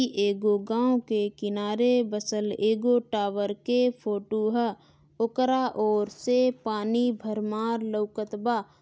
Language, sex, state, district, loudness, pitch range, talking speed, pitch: Bhojpuri, female, Bihar, Gopalganj, -27 LUFS, 210-240 Hz, 120 wpm, 215 Hz